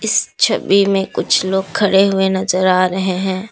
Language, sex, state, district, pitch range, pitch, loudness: Hindi, female, Assam, Kamrup Metropolitan, 185-195 Hz, 190 Hz, -15 LUFS